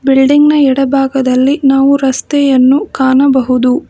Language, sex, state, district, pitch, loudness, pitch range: Kannada, female, Karnataka, Bangalore, 270 Hz, -10 LUFS, 260-280 Hz